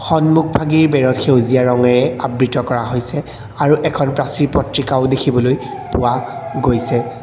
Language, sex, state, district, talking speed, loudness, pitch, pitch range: Assamese, male, Assam, Kamrup Metropolitan, 115 wpm, -15 LUFS, 135 Hz, 125-145 Hz